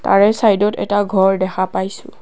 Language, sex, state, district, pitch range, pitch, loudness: Assamese, female, Assam, Kamrup Metropolitan, 190-205 Hz, 200 Hz, -16 LUFS